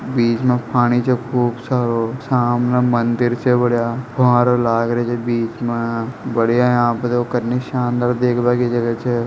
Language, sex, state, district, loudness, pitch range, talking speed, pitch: Hindi, male, Rajasthan, Nagaur, -18 LUFS, 120-125 Hz, 170 wpm, 120 Hz